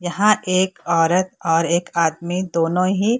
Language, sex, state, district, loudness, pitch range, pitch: Hindi, female, Bihar, Purnia, -19 LUFS, 170-185 Hz, 175 Hz